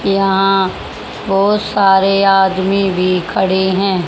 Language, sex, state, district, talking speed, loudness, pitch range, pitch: Hindi, male, Haryana, Rohtak, 105 wpm, -13 LUFS, 190-195 Hz, 195 Hz